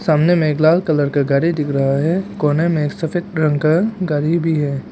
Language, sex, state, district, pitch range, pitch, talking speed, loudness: Hindi, male, Arunachal Pradesh, Papum Pare, 145-170 Hz, 155 Hz, 230 wpm, -17 LUFS